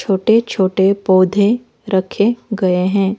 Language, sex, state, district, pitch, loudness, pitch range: Hindi, female, Odisha, Malkangiri, 200 Hz, -15 LUFS, 190-220 Hz